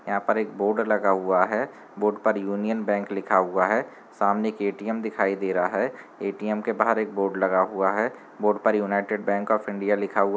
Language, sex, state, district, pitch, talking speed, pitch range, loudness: Hindi, male, Bihar, Gaya, 100 Hz, 220 wpm, 100-105 Hz, -25 LUFS